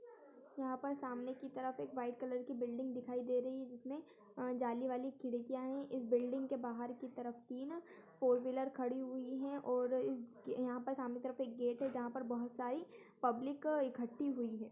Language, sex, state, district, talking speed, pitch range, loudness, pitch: Hindi, female, Chhattisgarh, Kabirdham, 190 wpm, 245-270 Hz, -42 LUFS, 255 Hz